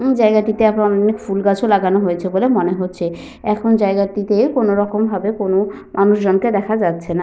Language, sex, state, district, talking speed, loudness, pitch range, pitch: Bengali, female, Jharkhand, Sahebganj, 175 wpm, -16 LUFS, 190-215 Hz, 205 Hz